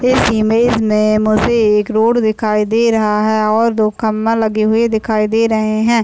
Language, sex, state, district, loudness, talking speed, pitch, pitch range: Hindi, male, Bihar, Madhepura, -14 LUFS, 200 wpm, 220 Hz, 215-225 Hz